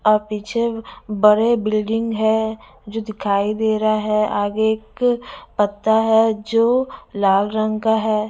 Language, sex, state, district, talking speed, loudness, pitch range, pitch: Hindi, female, Chhattisgarh, Raipur, 145 wpm, -19 LUFS, 210-225 Hz, 215 Hz